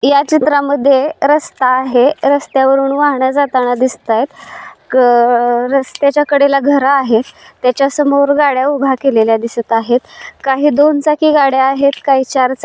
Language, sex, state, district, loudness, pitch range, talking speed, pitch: Marathi, female, Maharashtra, Solapur, -12 LUFS, 255-285 Hz, 140 wpm, 275 Hz